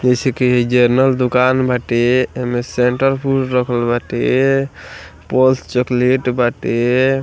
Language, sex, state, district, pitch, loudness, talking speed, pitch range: Bhojpuri, male, Bihar, East Champaran, 125 Hz, -15 LUFS, 115 wpm, 125-130 Hz